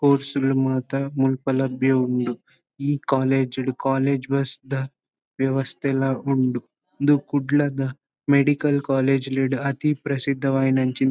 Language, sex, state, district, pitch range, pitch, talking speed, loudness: Tulu, male, Karnataka, Dakshina Kannada, 135-140 Hz, 135 Hz, 115 wpm, -22 LUFS